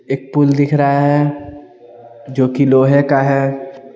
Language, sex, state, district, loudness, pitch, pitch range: Hindi, male, Bihar, Patna, -14 LUFS, 135 Hz, 130-140 Hz